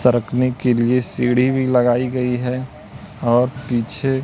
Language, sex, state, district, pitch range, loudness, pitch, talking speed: Hindi, male, Madhya Pradesh, Katni, 120-130 Hz, -18 LUFS, 125 Hz, 140 wpm